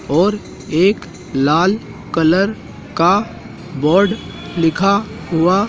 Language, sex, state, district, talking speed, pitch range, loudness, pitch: Hindi, male, Madhya Pradesh, Dhar, 85 wpm, 165-200 Hz, -16 LUFS, 185 Hz